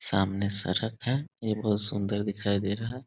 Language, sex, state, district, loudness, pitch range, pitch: Hindi, male, Bihar, East Champaran, -26 LUFS, 100-115 Hz, 105 Hz